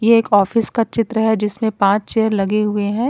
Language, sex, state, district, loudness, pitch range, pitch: Hindi, female, Punjab, Kapurthala, -17 LUFS, 205-230 Hz, 220 Hz